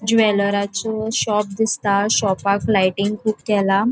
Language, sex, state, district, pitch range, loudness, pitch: Konkani, female, Goa, North and South Goa, 200-220 Hz, -19 LUFS, 205 Hz